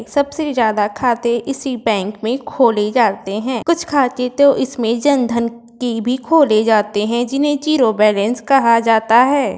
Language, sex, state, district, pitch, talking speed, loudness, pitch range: Hindi, female, Uttar Pradesh, Varanasi, 240 Hz, 165 wpm, -16 LUFS, 225-270 Hz